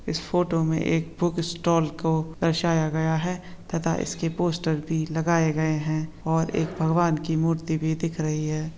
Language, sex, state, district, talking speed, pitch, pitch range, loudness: Hindi, female, Maharashtra, Sindhudurg, 170 wpm, 160 Hz, 160-170 Hz, -25 LUFS